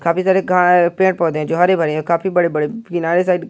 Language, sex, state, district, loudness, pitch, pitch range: Hindi, male, Uttar Pradesh, Jyotiba Phule Nagar, -16 LUFS, 175 Hz, 170-185 Hz